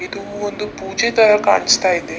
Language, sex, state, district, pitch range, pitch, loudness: Kannada, female, Karnataka, Dakshina Kannada, 195-210 Hz, 205 Hz, -16 LUFS